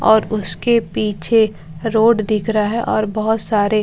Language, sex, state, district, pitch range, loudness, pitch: Hindi, female, Bihar, Katihar, 210-225 Hz, -17 LUFS, 215 Hz